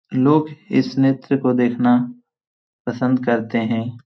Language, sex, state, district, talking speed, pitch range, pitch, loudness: Hindi, male, Jharkhand, Jamtara, 120 wpm, 120-135 Hz, 125 Hz, -19 LUFS